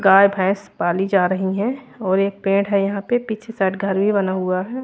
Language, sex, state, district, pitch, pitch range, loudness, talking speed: Hindi, female, Haryana, Rohtak, 195 Hz, 190-205 Hz, -19 LUFS, 235 wpm